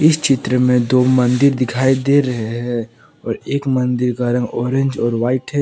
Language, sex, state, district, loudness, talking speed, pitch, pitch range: Hindi, male, Jharkhand, Palamu, -16 LUFS, 190 wpm, 125 Hz, 120-135 Hz